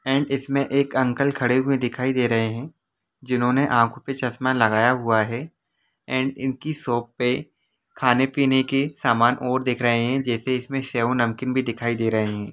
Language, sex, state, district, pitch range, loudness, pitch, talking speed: Hindi, male, Jharkhand, Jamtara, 120-135 Hz, -22 LUFS, 130 Hz, 170 wpm